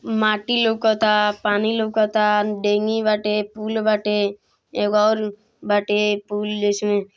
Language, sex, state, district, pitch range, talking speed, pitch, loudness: Bhojpuri, female, Bihar, East Champaran, 205-215 Hz, 110 wpm, 210 Hz, -20 LUFS